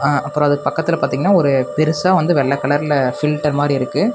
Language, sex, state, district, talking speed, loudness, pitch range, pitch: Tamil, male, Tamil Nadu, Namakkal, 190 wpm, -16 LUFS, 140-155 Hz, 145 Hz